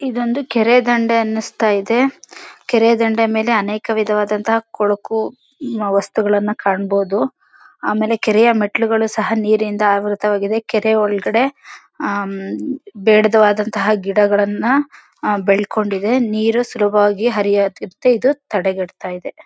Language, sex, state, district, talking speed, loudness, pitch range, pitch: Kannada, female, Karnataka, Mysore, 110 wpm, -16 LUFS, 205-235 Hz, 215 Hz